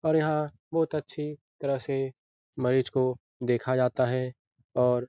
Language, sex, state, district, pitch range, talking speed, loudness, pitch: Hindi, male, Bihar, Lakhisarai, 125-150 Hz, 155 wpm, -29 LUFS, 130 Hz